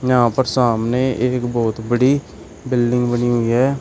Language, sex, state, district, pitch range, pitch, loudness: Hindi, male, Uttar Pradesh, Shamli, 120-130 Hz, 125 Hz, -18 LUFS